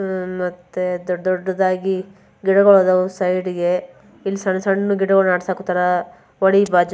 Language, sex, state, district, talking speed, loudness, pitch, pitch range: Kannada, male, Karnataka, Bijapur, 110 wpm, -18 LUFS, 185 Hz, 180-195 Hz